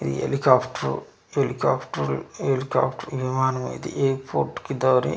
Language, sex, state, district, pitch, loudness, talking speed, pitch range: Telugu, male, Andhra Pradesh, Manyam, 130 Hz, -24 LUFS, 115 wpm, 125-135 Hz